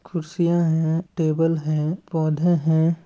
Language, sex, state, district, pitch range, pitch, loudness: Chhattisgarhi, male, Chhattisgarh, Balrampur, 160-170 Hz, 165 Hz, -22 LUFS